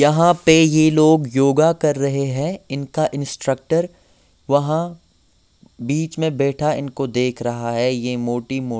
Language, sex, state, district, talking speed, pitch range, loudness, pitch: Hindi, male, Bihar, Patna, 145 wpm, 125-155 Hz, -18 LUFS, 140 Hz